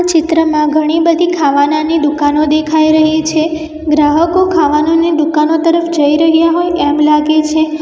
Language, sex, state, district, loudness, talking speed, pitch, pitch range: Gujarati, female, Gujarat, Valsad, -11 LUFS, 140 wpm, 315 Hz, 300-325 Hz